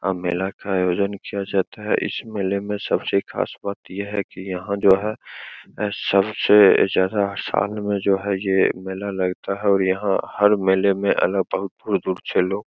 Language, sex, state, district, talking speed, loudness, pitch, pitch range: Hindi, male, Bihar, Begusarai, 200 wpm, -21 LUFS, 100 Hz, 95-100 Hz